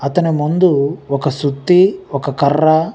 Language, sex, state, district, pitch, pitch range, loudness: Telugu, male, Telangana, Nalgonda, 150 Hz, 140-175 Hz, -15 LUFS